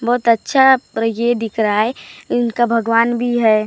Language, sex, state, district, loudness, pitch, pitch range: Hindi, female, Maharashtra, Gondia, -16 LUFS, 235 Hz, 225-240 Hz